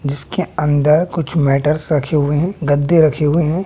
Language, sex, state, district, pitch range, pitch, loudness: Hindi, male, Bihar, West Champaran, 145-160 Hz, 150 Hz, -15 LUFS